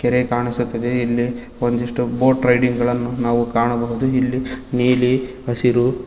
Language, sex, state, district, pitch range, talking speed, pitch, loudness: Kannada, male, Karnataka, Koppal, 120-125 Hz, 120 wpm, 120 Hz, -19 LUFS